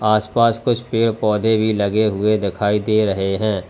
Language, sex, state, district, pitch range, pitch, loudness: Hindi, male, Uttar Pradesh, Lalitpur, 105-110 Hz, 110 Hz, -18 LUFS